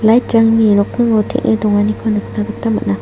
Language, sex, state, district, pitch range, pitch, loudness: Garo, female, Meghalaya, South Garo Hills, 210-225 Hz, 220 Hz, -14 LUFS